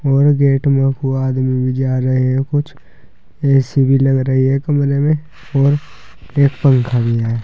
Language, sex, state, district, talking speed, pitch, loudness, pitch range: Hindi, male, Uttar Pradesh, Saharanpur, 170 wpm, 135 Hz, -15 LUFS, 130-140 Hz